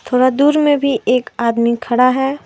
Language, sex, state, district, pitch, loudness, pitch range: Hindi, female, Jharkhand, Deoghar, 255 Hz, -14 LUFS, 240-280 Hz